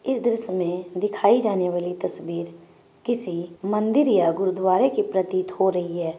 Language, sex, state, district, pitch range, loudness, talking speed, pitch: Magahi, female, Bihar, Gaya, 175-210 Hz, -23 LUFS, 155 wpm, 185 Hz